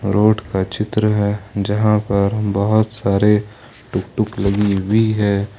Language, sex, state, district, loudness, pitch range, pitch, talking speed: Hindi, male, Jharkhand, Ranchi, -18 LUFS, 100-110 Hz, 105 Hz, 130 wpm